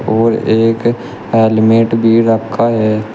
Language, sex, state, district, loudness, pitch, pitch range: Hindi, male, Uttar Pradesh, Shamli, -12 LUFS, 115 Hz, 110-115 Hz